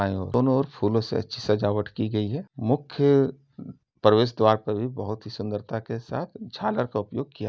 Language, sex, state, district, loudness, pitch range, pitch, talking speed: Hindi, male, Uttar Pradesh, Gorakhpur, -25 LUFS, 105-130 Hz, 115 Hz, 190 wpm